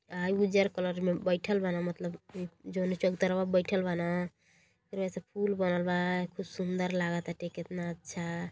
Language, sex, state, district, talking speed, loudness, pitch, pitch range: Bhojpuri, female, Uttar Pradesh, Gorakhpur, 185 wpm, -32 LUFS, 180 Hz, 175-185 Hz